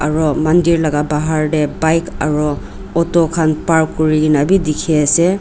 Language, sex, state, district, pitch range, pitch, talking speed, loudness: Nagamese, female, Nagaland, Dimapur, 150-165 Hz, 155 Hz, 145 wpm, -15 LUFS